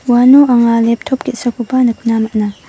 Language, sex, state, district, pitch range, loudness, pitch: Garo, female, Meghalaya, West Garo Hills, 230-255 Hz, -12 LUFS, 240 Hz